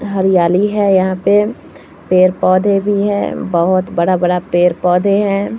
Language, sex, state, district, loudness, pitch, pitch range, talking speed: Hindi, female, Bihar, Samastipur, -13 LUFS, 190 Hz, 180-200 Hz, 120 wpm